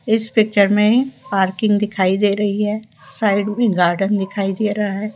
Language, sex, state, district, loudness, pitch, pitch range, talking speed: Hindi, female, Rajasthan, Jaipur, -17 LUFS, 210 Hz, 200-215 Hz, 175 wpm